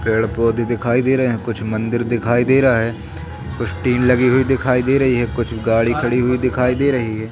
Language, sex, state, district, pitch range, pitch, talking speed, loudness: Hindi, male, Madhya Pradesh, Katni, 115-125 Hz, 120 Hz, 230 wpm, -17 LUFS